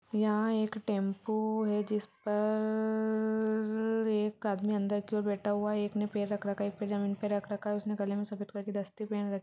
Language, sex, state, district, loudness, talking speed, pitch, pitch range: Hindi, female, Chhattisgarh, Balrampur, -33 LUFS, 225 wpm, 210 Hz, 205-215 Hz